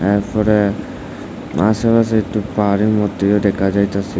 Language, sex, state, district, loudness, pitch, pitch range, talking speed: Bengali, male, Tripura, West Tripura, -16 LUFS, 105 Hz, 100-105 Hz, 100 wpm